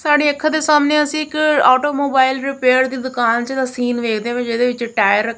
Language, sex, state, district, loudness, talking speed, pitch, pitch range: Punjabi, female, Punjab, Kapurthala, -16 LUFS, 210 wpm, 260 Hz, 240-295 Hz